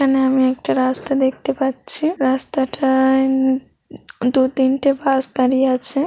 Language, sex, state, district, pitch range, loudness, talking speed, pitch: Bengali, female, West Bengal, North 24 Parganas, 260-270 Hz, -17 LUFS, 110 wpm, 265 Hz